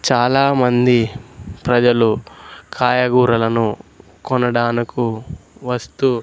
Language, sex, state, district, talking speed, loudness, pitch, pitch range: Telugu, male, Andhra Pradesh, Sri Satya Sai, 50 wpm, -17 LUFS, 120 Hz, 115-125 Hz